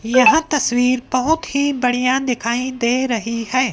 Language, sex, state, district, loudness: Hindi, female, Madhya Pradesh, Dhar, -17 LUFS